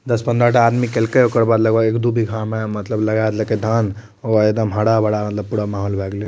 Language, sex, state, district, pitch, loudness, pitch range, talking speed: Maithili, male, Bihar, Madhepura, 110 Hz, -17 LUFS, 105-115 Hz, 230 wpm